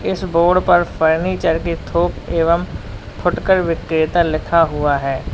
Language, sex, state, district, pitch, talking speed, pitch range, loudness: Hindi, male, Uttar Pradesh, Lalitpur, 170 Hz, 135 wpm, 160-175 Hz, -17 LUFS